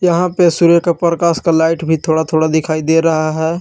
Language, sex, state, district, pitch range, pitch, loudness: Hindi, male, Jharkhand, Palamu, 160-170 Hz, 165 Hz, -13 LUFS